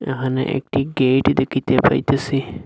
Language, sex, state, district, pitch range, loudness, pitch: Bengali, male, Assam, Hailakandi, 130-135 Hz, -19 LUFS, 135 Hz